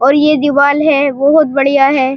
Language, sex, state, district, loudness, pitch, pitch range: Hindi, female, Uttar Pradesh, Muzaffarnagar, -10 LUFS, 280 Hz, 275-295 Hz